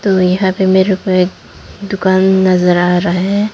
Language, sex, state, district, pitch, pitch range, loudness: Hindi, female, Tripura, Dhalai, 190 Hz, 180-190 Hz, -12 LUFS